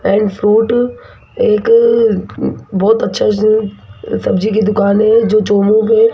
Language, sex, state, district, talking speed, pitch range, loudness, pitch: Hindi, female, Rajasthan, Jaipur, 125 wpm, 205-225 Hz, -12 LUFS, 215 Hz